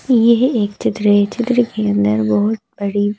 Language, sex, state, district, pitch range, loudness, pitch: Hindi, female, Madhya Pradesh, Bhopal, 200-235 Hz, -16 LUFS, 205 Hz